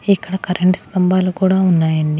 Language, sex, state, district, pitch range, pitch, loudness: Telugu, female, Andhra Pradesh, Annamaya, 180-190 Hz, 185 Hz, -16 LUFS